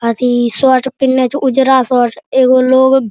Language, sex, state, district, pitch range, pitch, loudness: Maithili, male, Bihar, Araria, 250-265 Hz, 260 Hz, -11 LUFS